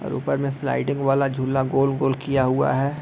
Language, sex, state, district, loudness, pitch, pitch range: Hindi, male, Bihar, East Champaran, -22 LUFS, 135 Hz, 135-140 Hz